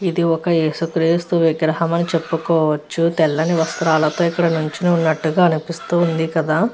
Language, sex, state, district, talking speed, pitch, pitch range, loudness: Telugu, female, Andhra Pradesh, Visakhapatnam, 115 wpm, 165 Hz, 160-170 Hz, -18 LUFS